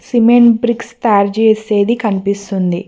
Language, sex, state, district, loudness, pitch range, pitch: Telugu, female, Telangana, Mahabubabad, -13 LUFS, 200-235 Hz, 220 Hz